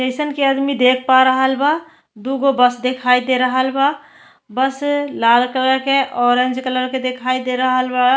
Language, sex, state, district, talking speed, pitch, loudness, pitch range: Bhojpuri, female, Uttar Pradesh, Deoria, 145 wpm, 260 Hz, -16 LUFS, 255-275 Hz